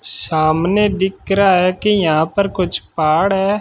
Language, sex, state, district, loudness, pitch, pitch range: Hindi, male, Rajasthan, Bikaner, -15 LUFS, 190 Hz, 160-200 Hz